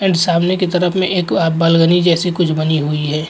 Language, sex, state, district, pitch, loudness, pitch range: Hindi, male, Uttar Pradesh, Muzaffarnagar, 170 Hz, -15 LUFS, 160-180 Hz